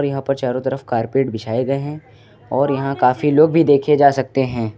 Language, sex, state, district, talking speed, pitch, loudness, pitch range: Hindi, male, Uttar Pradesh, Lucknow, 215 wpm, 135 Hz, -17 LUFS, 125-140 Hz